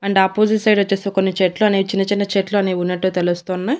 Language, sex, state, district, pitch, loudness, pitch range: Telugu, female, Andhra Pradesh, Annamaya, 195 Hz, -17 LUFS, 185-205 Hz